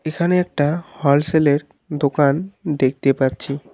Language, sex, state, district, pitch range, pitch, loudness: Bengali, male, West Bengal, Alipurduar, 140-170 Hz, 150 Hz, -19 LUFS